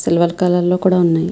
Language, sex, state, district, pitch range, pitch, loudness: Telugu, female, Andhra Pradesh, Visakhapatnam, 170-180 Hz, 175 Hz, -15 LUFS